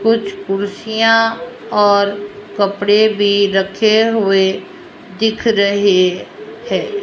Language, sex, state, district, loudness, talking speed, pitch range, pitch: Hindi, female, Rajasthan, Jaipur, -14 LUFS, 85 wpm, 200-225 Hz, 205 Hz